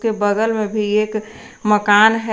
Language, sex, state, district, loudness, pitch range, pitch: Hindi, female, Jharkhand, Garhwa, -16 LUFS, 210-225 Hz, 215 Hz